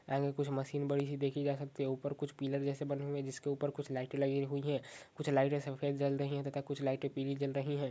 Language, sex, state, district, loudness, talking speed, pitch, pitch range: Hindi, male, Uttar Pradesh, Ghazipur, -37 LUFS, 265 wpm, 140 Hz, 140-145 Hz